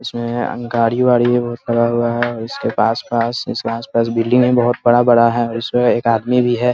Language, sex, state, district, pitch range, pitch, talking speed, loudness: Hindi, male, Bihar, Muzaffarpur, 115-120 Hz, 120 Hz, 215 wpm, -16 LUFS